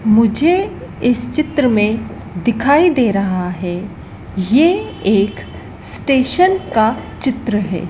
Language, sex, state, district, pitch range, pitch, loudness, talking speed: Hindi, female, Madhya Pradesh, Dhar, 200-280 Hz, 230 Hz, -16 LUFS, 105 wpm